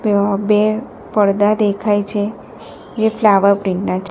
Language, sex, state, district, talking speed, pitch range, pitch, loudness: Gujarati, female, Gujarat, Gandhinagar, 130 wpm, 200-215 Hz, 205 Hz, -16 LUFS